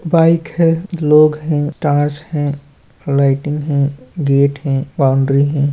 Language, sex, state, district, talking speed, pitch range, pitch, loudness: Hindi, male, Chhattisgarh, Raigarh, 125 wpm, 140-155 Hz, 145 Hz, -15 LUFS